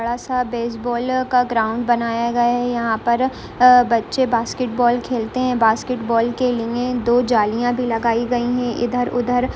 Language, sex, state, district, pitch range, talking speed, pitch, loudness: Hindi, female, Rajasthan, Churu, 235-250 Hz, 155 wpm, 240 Hz, -19 LUFS